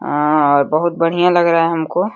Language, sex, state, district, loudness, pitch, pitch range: Hindi, female, Uttar Pradesh, Deoria, -14 LUFS, 165 Hz, 155-170 Hz